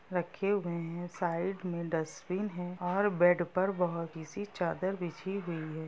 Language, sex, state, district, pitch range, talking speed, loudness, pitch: Hindi, female, Bihar, Sitamarhi, 170-190 Hz, 145 wpm, -33 LUFS, 180 Hz